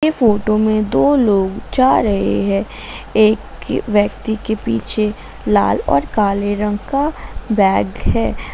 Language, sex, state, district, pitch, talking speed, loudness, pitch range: Hindi, female, Jharkhand, Garhwa, 210 Hz, 135 wpm, -16 LUFS, 200-220 Hz